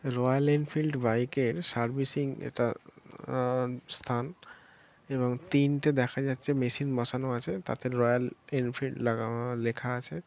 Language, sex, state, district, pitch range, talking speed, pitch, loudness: Bengali, male, West Bengal, Dakshin Dinajpur, 120-140 Hz, 115 wpm, 130 Hz, -30 LUFS